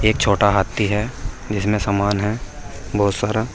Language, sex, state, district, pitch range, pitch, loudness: Hindi, male, Uttar Pradesh, Saharanpur, 100-105 Hz, 105 Hz, -20 LUFS